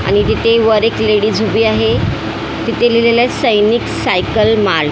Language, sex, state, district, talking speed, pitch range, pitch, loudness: Marathi, female, Maharashtra, Mumbai Suburban, 170 wpm, 210-230 Hz, 215 Hz, -13 LUFS